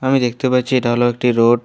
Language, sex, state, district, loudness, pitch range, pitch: Bengali, male, West Bengal, Alipurduar, -16 LUFS, 120-130 Hz, 120 Hz